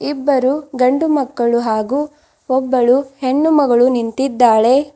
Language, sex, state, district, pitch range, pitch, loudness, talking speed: Kannada, female, Karnataka, Bidar, 245-285 Hz, 265 Hz, -15 LUFS, 95 wpm